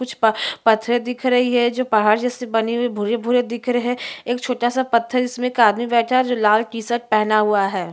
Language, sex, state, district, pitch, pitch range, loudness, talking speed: Hindi, female, Chhattisgarh, Jashpur, 240 Hz, 220-245 Hz, -19 LUFS, 235 wpm